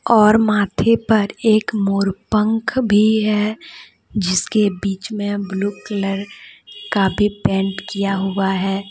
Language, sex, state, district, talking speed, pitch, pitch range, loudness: Hindi, female, Jharkhand, Deoghar, 130 wpm, 205 Hz, 195-215 Hz, -18 LUFS